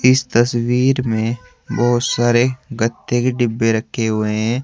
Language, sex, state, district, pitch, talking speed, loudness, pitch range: Hindi, male, Uttar Pradesh, Saharanpur, 120 Hz, 140 wpm, -17 LUFS, 115-125 Hz